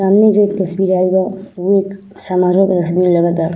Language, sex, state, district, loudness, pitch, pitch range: Bhojpuri, female, Uttar Pradesh, Ghazipur, -14 LUFS, 190 Hz, 180-195 Hz